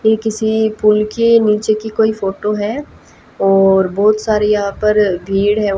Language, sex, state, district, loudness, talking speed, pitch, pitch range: Hindi, female, Haryana, Jhajjar, -14 LUFS, 165 wpm, 210 Hz, 200-220 Hz